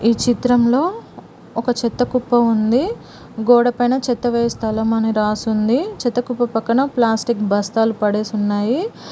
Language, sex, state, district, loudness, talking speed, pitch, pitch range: Telugu, female, Telangana, Mahabubabad, -18 LUFS, 130 wpm, 235 Hz, 220-245 Hz